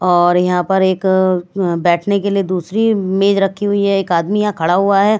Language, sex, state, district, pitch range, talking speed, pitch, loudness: Hindi, female, Bihar, West Champaran, 180-200 Hz, 205 wpm, 190 Hz, -15 LUFS